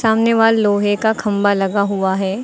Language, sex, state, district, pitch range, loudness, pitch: Hindi, female, Uttar Pradesh, Lucknow, 200-220 Hz, -16 LUFS, 205 Hz